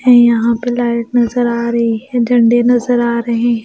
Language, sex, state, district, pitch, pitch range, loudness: Hindi, female, Bihar, Kaimur, 240 Hz, 235-245 Hz, -13 LUFS